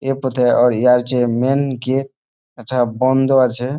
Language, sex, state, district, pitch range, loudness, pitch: Bengali, male, West Bengal, Malda, 125-135 Hz, -16 LUFS, 130 Hz